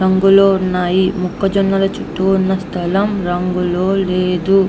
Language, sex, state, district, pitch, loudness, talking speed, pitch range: Telugu, female, Andhra Pradesh, Anantapur, 190 Hz, -15 LUFS, 100 wpm, 180-195 Hz